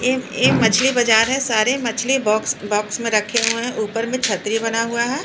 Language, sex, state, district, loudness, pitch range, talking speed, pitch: Hindi, female, Bihar, Patna, -18 LUFS, 220-250 Hz, 215 wpm, 230 Hz